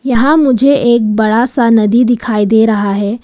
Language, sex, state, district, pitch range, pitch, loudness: Hindi, female, Arunachal Pradesh, Papum Pare, 215-245 Hz, 230 Hz, -10 LUFS